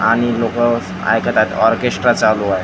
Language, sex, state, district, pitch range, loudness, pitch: Marathi, male, Maharashtra, Gondia, 110-120 Hz, -15 LUFS, 115 Hz